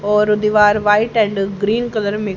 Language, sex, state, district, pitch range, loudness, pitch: Hindi, female, Haryana, Rohtak, 205-215 Hz, -15 LUFS, 210 Hz